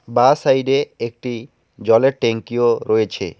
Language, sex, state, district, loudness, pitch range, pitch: Bengali, male, West Bengal, Alipurduar, -18 LUFS, 115-130 Hz, 120 Hz